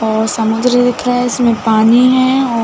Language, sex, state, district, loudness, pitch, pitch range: Hindi, female, Chhattisgarh, Bilaspur, -12 LUFS, 240 Hz, 220-250 Hz